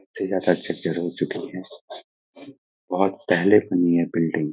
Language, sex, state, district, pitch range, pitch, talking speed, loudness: Hindi, male, Bihar, Saharsa, 85-95 Hz, 90 Hz, 120 wpm, -22 LUFS